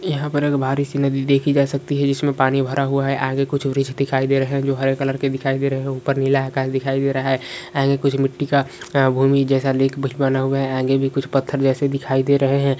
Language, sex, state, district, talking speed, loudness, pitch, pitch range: Hindi, male, West Bengal, Paschim Medinipur, 255 wpm, -19 LUFS, 135 Hz, 135-140 Hz